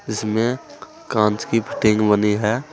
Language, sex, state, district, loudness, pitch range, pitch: Hindi, male, Uttar Pradesh, Saharanpur, -19 LUFS, 105-115 Hz, 110 Hz